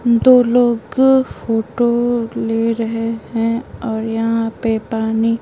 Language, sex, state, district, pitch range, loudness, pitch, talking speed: Hindi, female, Bihar, Patna, 225-240 Hz, -16 LUFS, 230 Hz, 120 wpm